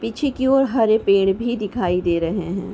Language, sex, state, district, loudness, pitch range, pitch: Hindi, female, Uttar Pradesh, Varanasi, -19 LUFS, 195-240 Hz, 215 Hz